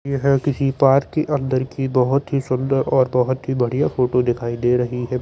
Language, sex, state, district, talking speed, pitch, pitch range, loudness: Hindi, male, Chandigarh, Chandigarh, 220 wpm, 130 Hz, 125-140 Hz, -19 LUFS